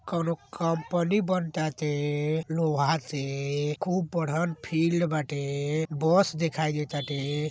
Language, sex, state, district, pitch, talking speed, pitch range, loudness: Hindi, male, Uttar Pradesh, Deoria, 160 Hz, 110 wpm, 145-170 Hz, -28 LUFS